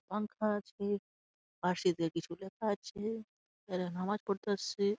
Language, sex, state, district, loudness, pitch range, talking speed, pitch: Bengali, male, West Bengal, Malda, -37 LUFS, 185-210 Hz, 120 wpm, 200 Hz